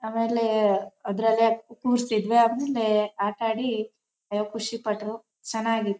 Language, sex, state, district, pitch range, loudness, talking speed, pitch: Kannada, female, Karnataka, Shimoga, 215-230 Hz, -25 LUFS, 90 wpm, 225 Hz